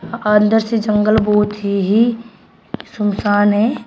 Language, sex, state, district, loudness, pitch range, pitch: Hindi, female, Uttar Pradesh, Shamli, -15 LUFS, 205-225 Hz, 210 Hz